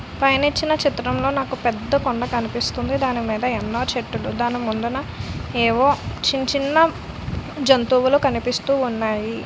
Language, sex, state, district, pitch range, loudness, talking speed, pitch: Telugu, female, Andhra Pradesh, Visakhapatnam, 235-275 Hz, -21 LUFS, 115 wpm, 260 Hz